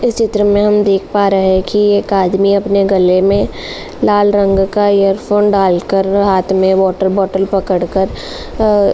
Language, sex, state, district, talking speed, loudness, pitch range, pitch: Hindi, female, Uttar Pradesh, Jalaun, 180 wpm, -12 LUFS, 190-205 Hz, 195 Hz